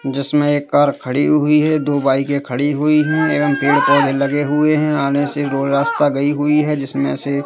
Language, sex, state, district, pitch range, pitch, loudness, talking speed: Hindi, male, Madhya Pradesh, Katni, 140-150 Hz, 145 Hz, -16 LUFS, 210 wpm